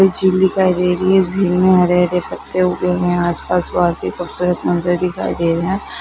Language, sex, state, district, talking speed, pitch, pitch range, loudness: Maithili, female, Bihar, Begusarai, 210 wpm, 180 Hz, 175-185 Hz, -16 LUFS